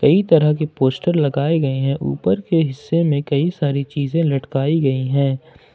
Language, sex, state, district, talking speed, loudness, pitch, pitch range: Hindi, male, Jharkhand, Ranchi, 175 wpm, -18 LUFS, 145 Hz, 135-160 Hz